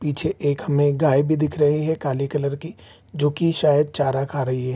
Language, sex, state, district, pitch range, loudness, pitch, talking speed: Hindi, male, Bihar, East Champaran, 140-155 Hz, -21 LUFS, 145 Hz, 240 wpm